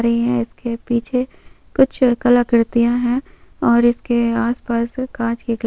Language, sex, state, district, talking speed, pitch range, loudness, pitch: Hindi, female, Chhattisgarh, Rajnandgaon, 125 wpm, 235-245 Hz, -18 LUFS, 240 Hz